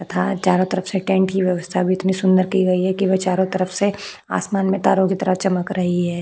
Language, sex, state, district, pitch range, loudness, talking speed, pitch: Hindi, female, Uttar Pradesh, Jyotiba Phule Nagar, 185-190 Hz, -19 LUFS, 250 wpm, 185 Hz